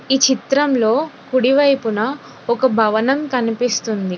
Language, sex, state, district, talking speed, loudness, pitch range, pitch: Telugu, female, Telangana, Hyderabad, 100 wpm, -17 LUFS, 225-270 Hz, 255 Hz